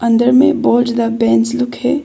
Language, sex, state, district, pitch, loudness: Hindi, female, Arunachal Pradesh, Longding, 235 Hz, -13 LUFS